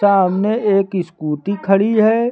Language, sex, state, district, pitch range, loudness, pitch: Hindi, male, Uttar Pradesh, Lucknow, 190-215 Hz, -16 LUFS, 200 Hz